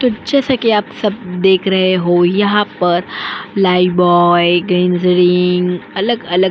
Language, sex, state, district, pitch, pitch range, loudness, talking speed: Hindi, female, Uttar Pradesh, Jyotiba Phule Nagar, 180 Hz, 180-205 Hz, -13 LUFS, 140 wpm